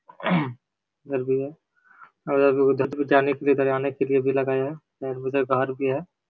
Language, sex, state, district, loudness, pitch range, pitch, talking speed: Hindi, male, Bihar, Supaul, -24 LUFS, 135-145 Hz, 135 Hz, 170 wpm